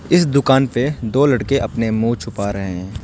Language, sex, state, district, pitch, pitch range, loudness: Hindi, male, West Bengal, Alipurduar, 115 Hz, 105-135 Hz, -17 LUFS